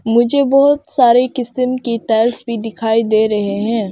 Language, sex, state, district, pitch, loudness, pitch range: Hindi, female, Arunachal Pradesh, Longding, 235 Hz, -15 LUFS, 220-255 Hz